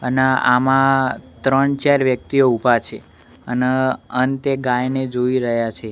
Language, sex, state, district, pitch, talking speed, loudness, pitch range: Gujarati, male, Gujarat, Gandhinagar, 130 Hz, 130 wpm, -18 LUFS, 125-135 Hz